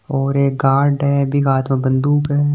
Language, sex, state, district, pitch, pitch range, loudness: Marwari, male, Rajasthan, Nagaur, 140 Hz, 135-145 Hz, -16 LUFS